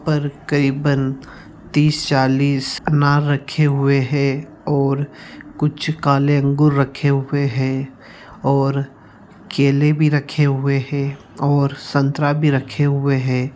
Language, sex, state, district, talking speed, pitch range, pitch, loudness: Hindi, male, Bihar, Jamui, 125 wpm, 135-145 Hz, 140 Hz, -18 LUFS